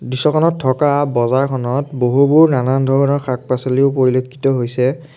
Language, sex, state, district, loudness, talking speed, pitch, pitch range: Assamese, male, Assam, Sonitpur, -15 LUFS, 105 wpm, 135 Hz, 130-140 Hz